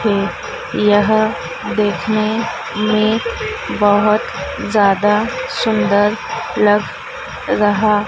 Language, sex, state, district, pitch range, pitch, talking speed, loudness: Hindi, female, Madhya Pradesh, Dhar, 205-215 Hz, 210 Hz, 65 wpm, -16 LUFS